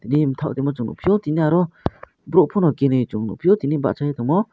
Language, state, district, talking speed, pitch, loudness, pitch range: Kokborok, Tripura, West Tripura, 185 wpm, 150 Hz, -20 LUFS, 135-165 Hz